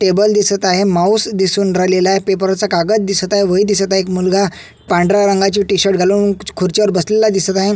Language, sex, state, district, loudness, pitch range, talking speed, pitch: Marathi, male, Maharashtra, Solapur, -14 LUFS, 190-205 Hz, 200 wpm, 195 Hz